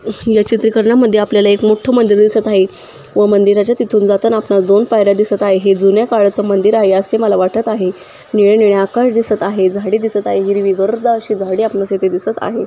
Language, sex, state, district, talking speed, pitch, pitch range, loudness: Marathi, female, Maharashtra, Sindhudurg, 200 wpm, 205 Hz, 195-220 Hz, -12 LUFS